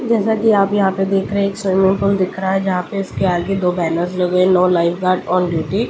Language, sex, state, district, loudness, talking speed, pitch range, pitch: Hindi, female, Delhi, New Delhi, -16 LUFS, 275 wpm, 180-200 Hz, 190 Hz